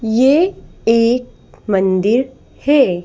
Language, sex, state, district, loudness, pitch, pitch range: Hindi, female, Madhya Pradesh, Bhopal, -15 LUFS, 235 Hz, 210-265 Hz